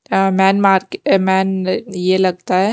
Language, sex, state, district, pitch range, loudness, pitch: Hindi, female, Himachal Pradesh, Shimla, 185-195 Hz, -15 LUFS, 190 Hz